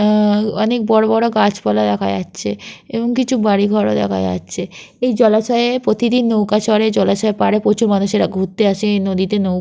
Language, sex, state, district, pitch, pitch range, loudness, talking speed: Bengali, female, West Bengal, Jhargram, 210 Hz, 195-225 Hz, -16 LUFS, 160 wpm